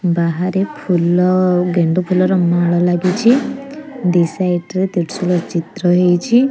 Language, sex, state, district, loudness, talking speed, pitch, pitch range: Odia, female, Odisha, Khordha, -15 LUFS, 120 wpm, 180 Hz, 175-190 Hz